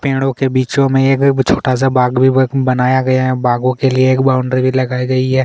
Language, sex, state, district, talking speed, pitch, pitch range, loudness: Hindi, male, Chhattisgarh, Kabirdham, 230 wpm, 130 Hz, 130-135 Hz, -13 LUFS